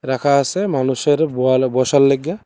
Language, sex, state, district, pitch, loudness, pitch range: Bengali, male, Tripura, West Tripura, 140 Hz, -16 LUFS, 130-150 Hz